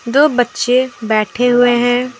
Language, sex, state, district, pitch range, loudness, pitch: Hindi, female, Jharkhand, Deoghar, 240-255 Hz, -14 LUFS, 245 Hz